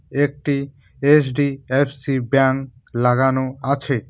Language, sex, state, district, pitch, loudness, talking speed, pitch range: Bengali, male, West Bengal, Cooch Behar, 135 Hz, -19 LUFS, 75 wpm, 130-140 Hz